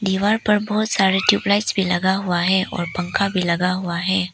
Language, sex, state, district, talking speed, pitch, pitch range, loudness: Hindi, female, Arunachal Pradesh, Papum Pare, 205 wpm, 190 Hz, 180-205 Hz, -19 LUFS